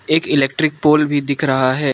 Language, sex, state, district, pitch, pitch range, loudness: Hindi, male, Arunachal Pradesh, Lower Dibang Valley, 145 Hz, 135-150 Hz, -16 LUFS